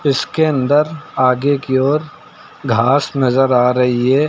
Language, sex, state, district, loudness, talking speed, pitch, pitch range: Hindi, male, Uttar Pradesh, Lucknow, -15 LUFS, 140 wpm, 135 Hz, 125-145 Hz